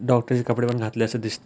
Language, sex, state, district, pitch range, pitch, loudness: Marathi, male, Maharashtra, Aurangabad, 115-125 Hz, 120 Hz, -23 LUFS